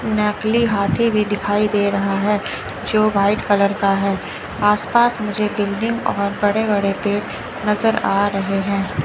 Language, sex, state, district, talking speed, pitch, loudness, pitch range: Hindi, female, Chandigarh, Chandigarh, 150 wpm, 205 Hz, -18 LUFS, 200-215 Hz